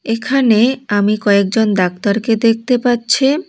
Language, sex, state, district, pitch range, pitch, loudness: Bengali, female, West Bengal, Cooch Behar, 205-250 Hz, 225 Hz, -14 LUFS